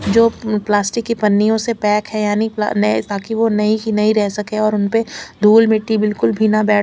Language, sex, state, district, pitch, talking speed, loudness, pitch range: Hindi, female, Chandigarh, Chandigarh, 215 Hz, 210 wpm, -16 LUFS, 210-220 Hz